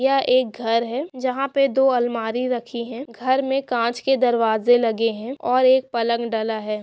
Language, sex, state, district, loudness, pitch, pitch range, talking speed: Maithili, female, Bihar, Supaul, -21 LUFS, 245 Hz, 230-260 Hz, 195 wpm